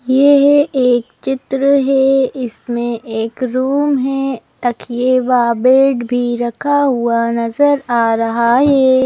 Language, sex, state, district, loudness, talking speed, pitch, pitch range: Hindi, female, Madhya Pradesh, Bhopal, -14 LUFS, 120 wpm, 255 Hz, 240-270 Hz